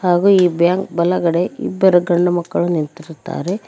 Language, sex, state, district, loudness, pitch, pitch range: Kannada, female, Karnataka, Koppal, -16 LUFS, 175 Hz, 170-185 Hz